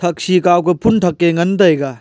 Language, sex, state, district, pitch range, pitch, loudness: Wancho, male, Arunachal Pradesh, Longding, 170-180 Hz, 175 Hz, -13 LUFS